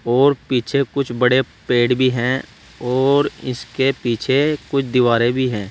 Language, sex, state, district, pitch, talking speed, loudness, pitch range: Hindi, male, Uttar Pradesh, Saharanpur, 130 Hz, 135 wpm, -18 LUFS, 120-135 Hz